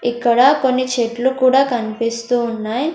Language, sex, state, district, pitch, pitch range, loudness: Telugu, female, Andhra Pradesh, Sri Satya Sai, 245 Hz, 235-260 Hz, -16 LUFS